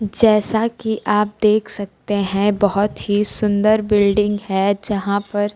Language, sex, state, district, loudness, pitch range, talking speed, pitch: Hindi, female, Bihar, Kaimur, -18 LUFS, 205-210 Hz, 140 wpm, 205 Hz